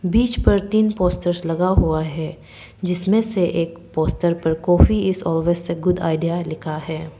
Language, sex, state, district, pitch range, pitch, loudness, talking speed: Hindi, female, Arunachal Pradesh, Papum Pare, 160-185 Hz, 175 Hz, -20 LUFS, 165 wpm